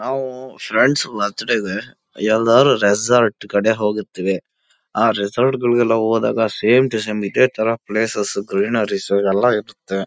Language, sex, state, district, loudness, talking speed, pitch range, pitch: Kannada, male, Karnataka, Chamarajanagar, -18 LUFS, 130 wpm, 100-120 Hz, 110 Hz